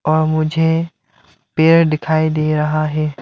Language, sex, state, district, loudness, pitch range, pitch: Hindi, male, Arunachal Pradesh, Lower Dibang Valley, -16 LUFS, 155-160 Hz, 155 Hz